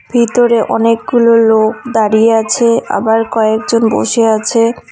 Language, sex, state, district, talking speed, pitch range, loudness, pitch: Bengali, female, West Bengal, Cooch Behar, 110 wpm, 220-235 Hz, -11 LUFS, 225 Hz